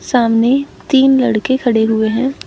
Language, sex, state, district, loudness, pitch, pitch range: Hindi, female, Haryana, Charkhi Dadri, -13 LUFS, 245 Hz, 225-265 Hz